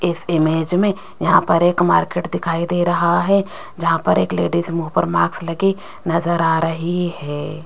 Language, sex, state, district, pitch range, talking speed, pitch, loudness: Hindi, female, Rajasthan, Jaipur, 160-175 Hz, 180 wpm, 170 Hz, -18 LUFS